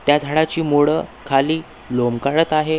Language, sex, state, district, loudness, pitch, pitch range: Marathi, male, Maharashtra, Nagpur, -18 LUFS, 150 Hz, 140-155 Hz